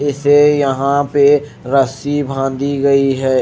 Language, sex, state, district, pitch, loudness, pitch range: Hindi, male, Himachal Pradesh, Shimla, 140 Hz, -14 LUFS, 135-145 Hz